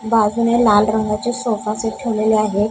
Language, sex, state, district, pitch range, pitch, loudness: Marathi, female, Maharashtra, Gondia, 210-230 Hz, 220 Hz, -17 LUFS